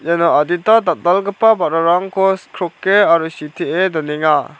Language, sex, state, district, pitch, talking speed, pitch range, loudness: Garo, male, Meghalaya, South Garo Hills, 175 Hz, 105 wpm, 160-195 Hz, -15 LUFS